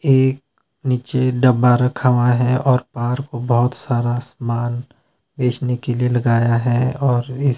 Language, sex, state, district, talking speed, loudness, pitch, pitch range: Hindi, male, Himachal Pradesh, Shimla, 150 wpm, -18 LUFS, 125 Hz, 120-130 Hz